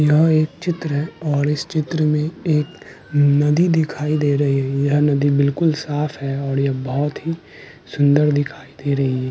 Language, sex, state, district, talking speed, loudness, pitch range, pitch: Hindi, male, Uttarakhand, Tehri Garhwal, 180 wpm, -19 LUFS, 140-155 Hz, 145 Hz